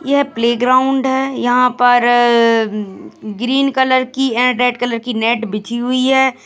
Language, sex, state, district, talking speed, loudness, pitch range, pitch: Hindi, female, Uttarakhand, Tehri Garhwal, 150 wpm, -14 LUFS, 235-260 Hz, 245 Hz